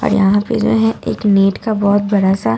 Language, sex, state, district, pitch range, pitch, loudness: Hindi, female, Bihar, Katihar, 195-220 Hz, 205 Hz, -14 LUFS